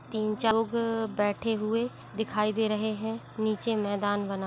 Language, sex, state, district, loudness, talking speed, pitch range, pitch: Hindi, female, Bihar, East Champaran, -29 LUFS, 160 wpm, 210-225 Hz, 220 Hz